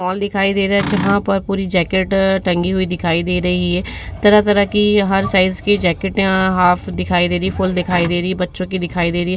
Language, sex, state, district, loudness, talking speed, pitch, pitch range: Hindi, female, Uttar Pradesh, Varanasi, -16 LUFS, 225 wpm, 185 Hz, 180-195 Hz